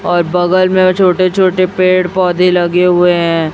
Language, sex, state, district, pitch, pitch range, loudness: Hindi, female, Chhattisgarh, Raipur, 180 Hz, 175-185 Hz, -11 LUFS